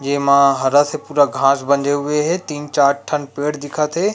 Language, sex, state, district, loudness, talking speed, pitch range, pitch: Chhattisgarhi, male, Chhattisgarh, Rajnandgaon, -17 LUFS, 215 wpm, 140-150 Hz, 145 Hz